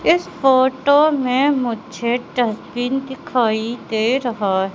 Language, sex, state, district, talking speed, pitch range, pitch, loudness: Hindi, female, Madhya Pradesh, Katni, 115 wpm, 230-270 Hz, 250 Hz, -18 LUFS